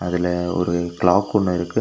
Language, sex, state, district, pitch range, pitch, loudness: Tamil, male, Tamil Nadu, Nilgiris, 85-90 Hz, 90 Hz, -20 LUFS